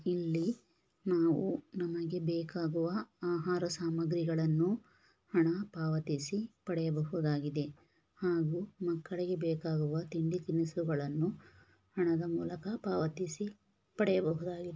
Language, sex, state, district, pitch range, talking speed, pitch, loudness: Kannada, female, Karnataka, Shimoga, 165-180 Hz, 75 wpm, 170 Hz, -35 LUFS